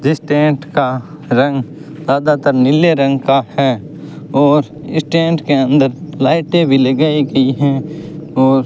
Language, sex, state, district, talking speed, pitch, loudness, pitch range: Hindi, male, Rajasthan, Bikaner, 145 wpm, 145 Hz, -14 LUFS, 135-155 Hz